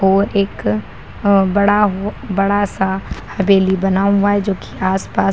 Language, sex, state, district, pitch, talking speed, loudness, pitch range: Hindi, female, Bihar, Kishanganj, 195 Hz, 145 wpm, -16 LUFS, 190-200 Hz